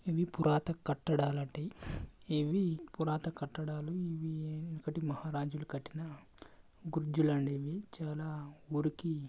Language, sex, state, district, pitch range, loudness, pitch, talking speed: Telugu, male, Telangana, Karimnagar, 150-165 Hz, -37 LUFS, 155 Hz, 105 wpm